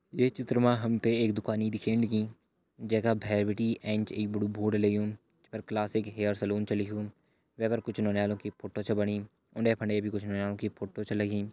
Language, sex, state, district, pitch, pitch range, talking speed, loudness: Hindi, male, Uttarakhand, Uttarkashi, 105 Hz, 105-115 Hz, 210 wpm, -31 LUFS